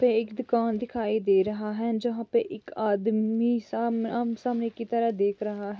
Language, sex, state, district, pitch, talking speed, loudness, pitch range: Hindi, female, Andhra Pradesh, Chittoor, 230 Hz, 185 wpm, -27 LUFS, 215-235 Hz